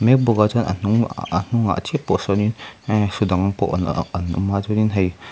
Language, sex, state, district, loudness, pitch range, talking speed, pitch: Mizo, male, Mizoram, Aizawl, -20 LUFS, 90-110 Hz, 280 wpm, 100 Hz